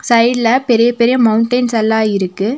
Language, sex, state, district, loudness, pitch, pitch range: Tamil, female, Tamil Nadu, Nilgiris, -13 LUFS, 235 Hz, 220-245 Hz